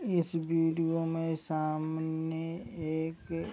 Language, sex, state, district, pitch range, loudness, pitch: Hindi, male, Uttar Pradesh, Muzaffarnagar, 160-165 Hz, -33 LUFS, 165 Hz